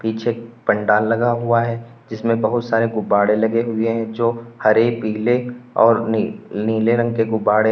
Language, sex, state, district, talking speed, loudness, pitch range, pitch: Hindi, male, Uttar Pradesh, Lalitpur, 170 wpm, -18 LUFS, 110-115 Hz, 115 Hz